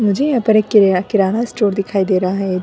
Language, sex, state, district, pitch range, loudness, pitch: Hindi, female, Bihar, Gaya, 190-220 Hz, -15 LUFS, 200 Hz